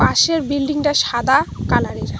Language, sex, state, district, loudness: Bengali, female, West Bengal, Cooch Behar, -17 LUFS